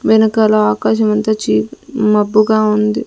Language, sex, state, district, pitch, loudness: Telugu, female, Andhra Pradesh, Sri Satya Sai, 215 Hz, -13 LUFS